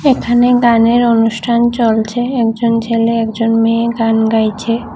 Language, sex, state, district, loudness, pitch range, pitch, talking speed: Bengali, female, Tripura, West Tripura, -13 LUFS, 225-235 Hz, 230 Hz, 120 wpm